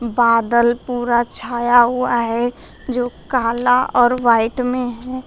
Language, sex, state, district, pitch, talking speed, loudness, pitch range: Hindi, female, Uttar Pradesh, Shamli, 245 Hz, 125 wpm, -17 LUFS, 235-250 Hz